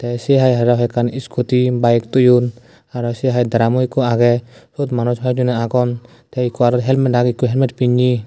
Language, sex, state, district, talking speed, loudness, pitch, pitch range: Chakma, male, Tripura, Dhalai, 190 wpm, -16 LUFS, 125 Hz, 120-125 Hz